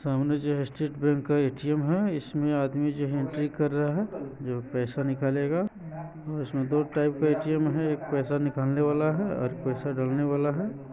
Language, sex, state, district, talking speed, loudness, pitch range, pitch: Hindi, male, Bihar, East Champaran, 180 wpm, -28 LUFS, 140-150 Hz, 145 Hz